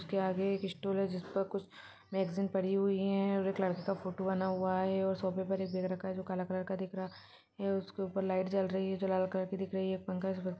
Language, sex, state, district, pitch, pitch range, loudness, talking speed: Hindi, female, Chhattisgarh, Balrampur, 190 Hz, 185-195 Hz, -35 LUFS, 270 wpm